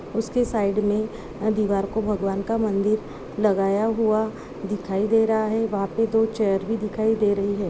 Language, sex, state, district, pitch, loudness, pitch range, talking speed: Hindi, female, Chhattisgarh, Balrampur, 215 Hz, -23 LUFS, 200-220 Hz, 165 wpm